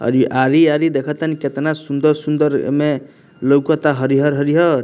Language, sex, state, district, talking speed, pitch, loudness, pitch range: Bhojpuri, male, Bihar, Muzaffarpur, 110 wpm, 145 Hz, -16 LUFS, 140-155 Hz